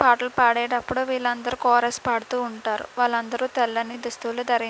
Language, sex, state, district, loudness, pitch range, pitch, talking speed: Telugu, female, Andhra Pradesh, Krishna, -23 LUFS, 235-250 Hz, 245 Hz, 140 wpm